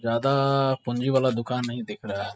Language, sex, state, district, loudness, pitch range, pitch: Hindi, male, Bihar, Muzaffarpur, -25 LUFS, 115-135 Hz, 125 Hz